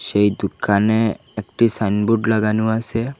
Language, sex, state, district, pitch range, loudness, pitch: Bengali, male, Assam, Hailakandi, 105-115 Hz, -18 LUFS, 110 Hz